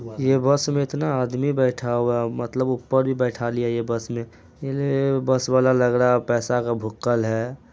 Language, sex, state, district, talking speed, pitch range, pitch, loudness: Hindi, male, Bihar, Araria, 210 wpm, 120-130 Hz, 125 Hz, -22 LUFS